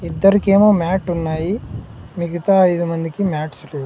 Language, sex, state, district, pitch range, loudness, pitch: Telugu, male, Andhra Pradesh, Sri Satya Sai, 165-195 Hz, -17 LUFS, 175 Hz